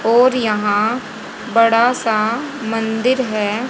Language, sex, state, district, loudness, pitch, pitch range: Hindi, female, Haryana, Jhajjar, -16 LUFS, 230 Hz, 220-250 Hz